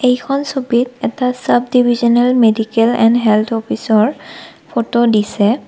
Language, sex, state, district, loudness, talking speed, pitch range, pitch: Assamese, female, Assam, Kamrup Metropolitan, -14 LUFS, 125 wpm, 225-250 Hz, 235 Hz